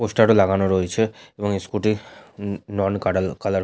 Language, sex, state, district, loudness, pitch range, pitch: Bengali, male, West Bengal, Jhargram, -21 LUFS, 95-105 Hz, 100 Hz